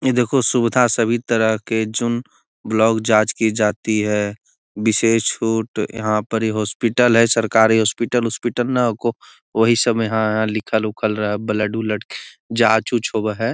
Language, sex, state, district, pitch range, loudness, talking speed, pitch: Magahi, male, Bihar, Gaya, 110-115 Hz, -18 LUFS, 145 wpm, 110 Hz